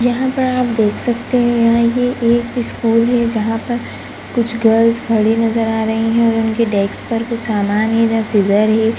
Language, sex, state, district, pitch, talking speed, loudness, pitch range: Hindi, female, Uttarakhand, Tehri Garhwal, 230 Hz, 200 wpm, -15 LUFS, 220-240 Hz